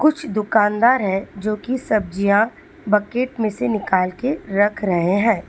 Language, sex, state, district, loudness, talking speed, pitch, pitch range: Hindi, female, Telangana, Hyderabad, -19 LUFS, 140 wpm, 215 Hz, 200-245 Hz